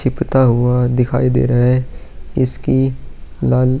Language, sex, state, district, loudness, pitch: Hindi, male, Chhattisgarh, Korba, -15 LUFS, 125 Hz